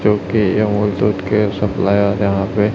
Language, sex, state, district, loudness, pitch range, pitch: Hindi, male, Chhattisgarh, Raipur, -16 LUFS, 100-105 Hz, 105 Hz